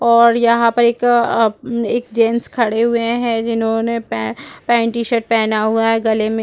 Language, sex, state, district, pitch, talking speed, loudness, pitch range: Hindi, female, Chhattisgarh, Rajnandgaon, 230 Hz, 170 wpm, -16 LUFS, 225-235 Hz